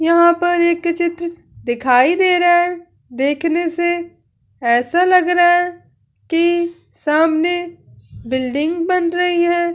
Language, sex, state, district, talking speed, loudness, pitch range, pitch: Hindi, female, Uttar Pradesh, Hamirpur, 125 wpm, -16 LUFS, 315-350 Hz, 340 Hz